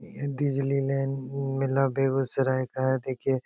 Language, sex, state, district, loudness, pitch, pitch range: Hindi, male, Bihar, Begusarai, -27 LUFS, 135 Hz, 130-135 Hz